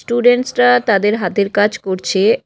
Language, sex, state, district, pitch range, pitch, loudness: Bengali, female, West Bengal, Cooch Behar, 200-245 Hz, 215 Hz, -14 LUFS